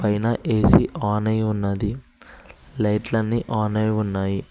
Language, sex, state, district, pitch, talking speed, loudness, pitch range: Telugu, male, Telangana, Hyderabad, 105 Hz, 120 wpm, -22 LUFS, 105-110 Hz